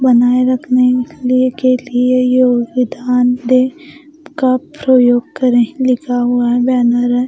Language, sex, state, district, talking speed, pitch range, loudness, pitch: Hindi, female, Bihar, West Champaran, 130 wpm, 245-255 Hz, -13 LUFS, 250 Hz